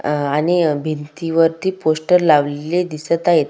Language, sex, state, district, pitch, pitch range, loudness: Marathi, female, Maharashtra, Solapur, 155 Hz, 150-170 Hz, -17 LUFS